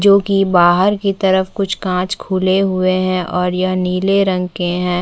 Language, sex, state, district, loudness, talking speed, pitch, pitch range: Hindi, female, Chhattisgarh, Bastar, -15 LUFS, 190 wpm, 185 Hz, 180-195 Hz